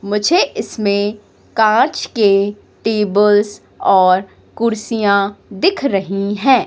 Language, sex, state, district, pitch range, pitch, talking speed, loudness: Hindi, female, Madhya Pradesh, Katni, 200-225 Hz, 210 Hz, 90 wpm, -15 LUFS